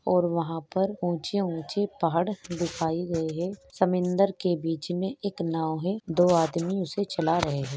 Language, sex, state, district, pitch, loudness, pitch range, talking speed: Hindi, female, Chhattisgarh, Jashpur, 175 Hz, -27 LUFS, 165-190 Hz, 155 wpm